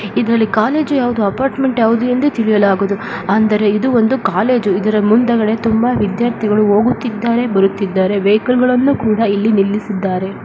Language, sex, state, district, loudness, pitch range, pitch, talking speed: Kannada, female, Karnataka, Dakshina Kannada, -14 LUFS, 205-240 Hz, 220 Hz, 125 wpm